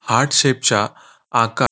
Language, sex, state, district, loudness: Marathi, male, Maharashtra, Nagpur, -17 LUFS